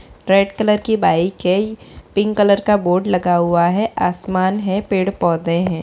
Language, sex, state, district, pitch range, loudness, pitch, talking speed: Hindi, female, Bihar, Samastipur, 180-205 Hz, -17 LUFS, 190 Hz, 195 wpm